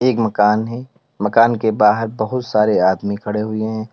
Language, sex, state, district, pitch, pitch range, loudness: Hindi, male, Uttar Pradesh, Lalitpur, 110 Hz, 105-115 Hz, -17 LUFS